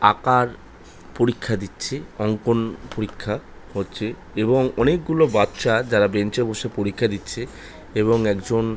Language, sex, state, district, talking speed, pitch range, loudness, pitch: Bengali, male, West Bengal, North 24 Parganas, 125 wpm, 100-120 Hz, -22 LUFS, 110 Hz